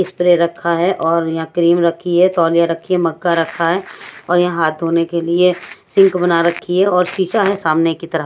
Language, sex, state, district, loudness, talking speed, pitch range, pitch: Hindi, female, Odisha, Sambalpur, -15 LUFS, 220 wpm, 165-180 Hz, 170 Hz